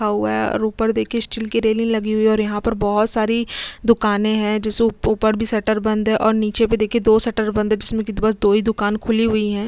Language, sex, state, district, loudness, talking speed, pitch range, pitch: Hindi, female, Chhattisgarh, Sukma, -19 LUFS, 235 wpm, 215-225 Hz, 220 Hz